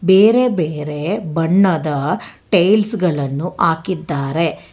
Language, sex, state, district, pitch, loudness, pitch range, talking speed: Kannada, female, Karnataka, Bangalore, 170 Hz, -17 LUFS, 155-190 Hz, 75 wpm